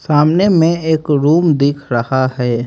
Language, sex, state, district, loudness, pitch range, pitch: Hindi, male, Haryana, Jhajjar, -13 LUFS, 130-160 Hz, 150 Hz